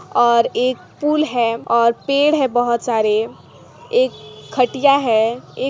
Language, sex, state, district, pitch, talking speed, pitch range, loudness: Hindi, female, Jharkhand, Sahebganj, 245 Hz, 115 wpm, 235-280 Hz, -17 LUFS